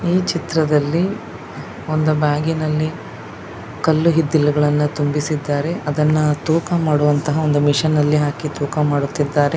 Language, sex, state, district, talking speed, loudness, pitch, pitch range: Kannada, female, Karnataka, Dakshina Kannada, 100 wpm, -18 LUFS, 150 Hz, 145-160 Hz